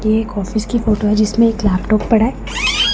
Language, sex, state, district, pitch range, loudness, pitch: Hindi, female, Punjab, Pathankot, 210-225 Hz, -16 LUFS, 215 Hz